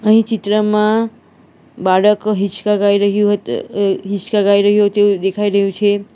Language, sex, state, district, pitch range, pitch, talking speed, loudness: Gujarati, female, Gujarat, Valsad, 200-210 Hz, 205 Hz, 145 wpm, -15 LUFS